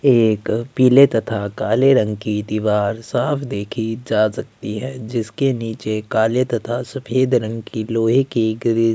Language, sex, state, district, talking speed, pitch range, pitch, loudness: Hindi, male, Chhattisgarh, Sukma, 155 wpm, 110-125 Hz, 115 Hz, -19 LUFS